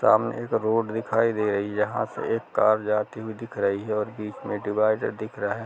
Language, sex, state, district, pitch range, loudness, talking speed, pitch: Hindi, male, Chhattisgarh, Kabirdham, 105-110 Hz, -26 LUFS, 245 wpm, 110 Hz